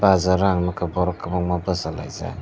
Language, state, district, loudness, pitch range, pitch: Kokborok, Tripura, Dhalai, -22 LUFS, 90-95 Hz, 90 Hz